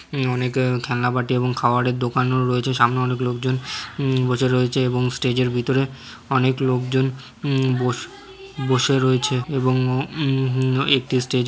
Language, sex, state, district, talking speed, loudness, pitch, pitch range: Bengali, male, West Bengal, Jhargram, 155 wpm, -21 LUFS, 130 Hz, 125-130 Hz